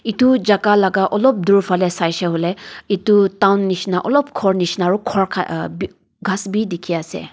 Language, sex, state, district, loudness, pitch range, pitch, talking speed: Nagamese, female, Nagaland, Dimapur, -17 LUFS, 180-205 Hz, 195 Hz, 180 wpm